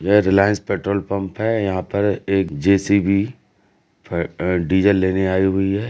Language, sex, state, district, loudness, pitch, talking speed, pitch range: Hindi, male, Uttar Pradesh, Jalaun, -19 LUFS, 100 Hz, 155 wpm, 95-100 Hz